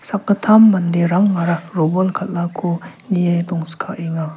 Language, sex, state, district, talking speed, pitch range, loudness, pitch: Garo, male, Meghalaya, South Garo Hills, 80 wpm, 170-195 Hz, -17 LUFS, 175 Hz